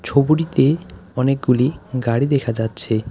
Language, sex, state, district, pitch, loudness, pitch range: Bengali, male, West Bengal, Alipurduar, 130 Hz, -19 LUFS, 115-140 Hz